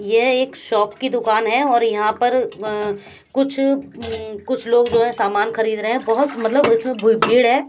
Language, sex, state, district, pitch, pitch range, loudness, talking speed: Hindi, female, Haryana, Jhajjar, 230 Hz, 220-255 Hz, -18 LUFS, 195 wpm